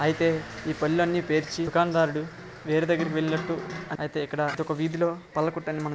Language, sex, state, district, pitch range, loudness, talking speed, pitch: Telugu, male, Andhra Pradesh, Srikakulam, 155-170 Hz, -27 LUFS, 160 wpm, 160 Hz